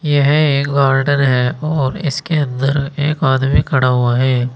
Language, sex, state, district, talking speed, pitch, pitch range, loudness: Hindi, male, Uttar Pradesh, Saharanpur, 155 wpm, 140 Hz, 130-145 Hz, -15 LUFS